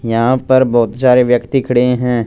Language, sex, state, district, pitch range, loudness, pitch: Hindi, male, Punjab, Fazilka, 120-130 Hz, -13 LUFS, 125 Hz